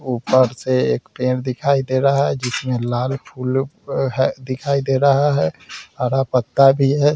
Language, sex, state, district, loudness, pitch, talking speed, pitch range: Hindi, male, Bihar, Vaishali, -18 LUFS, 130 Hz, 175 wpm, 125-140 Hz